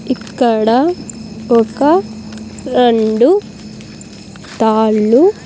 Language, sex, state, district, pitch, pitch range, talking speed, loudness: Telugu, female, Andhra Pradesh, Sri Satya Sai, 225 Hz, 220-250 Hz, 45 wpm, -13 LUFS